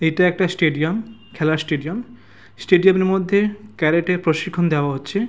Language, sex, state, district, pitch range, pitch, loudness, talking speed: Bengali, male, West Bengal, Purulia, 160-200 Hz, 180 Hz, -19 LUFS, 135 wpm